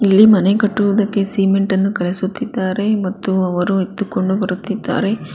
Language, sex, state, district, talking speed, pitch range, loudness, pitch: Kannada, female, Karnataka, Bangalore, 110 wpm, 190-210 Hz, -16 LUFS, 200 Hz